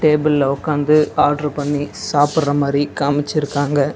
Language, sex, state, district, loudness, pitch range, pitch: Tamil, male, Tamil Nadu, Nilgiris, -17 LUFS, 145-150 Hz, 145 Hz